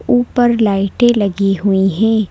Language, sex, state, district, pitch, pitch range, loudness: Hindi, female, Madhya Pradesh, Bhopal, 215 Hz, 195-240 Hz, -14 LUFS